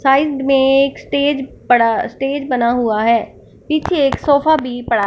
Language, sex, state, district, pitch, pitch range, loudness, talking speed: Hindi, female, Punjab, Fazilka, 270 Hz, 245-285 Hz, -15 LUFS, 175 wpm